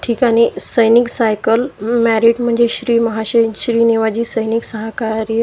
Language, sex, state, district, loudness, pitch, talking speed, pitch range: Marathi, male, Maharashtra, Washim, -15 LUFS, 230 Hz, 120 wpm, 225-235 Hz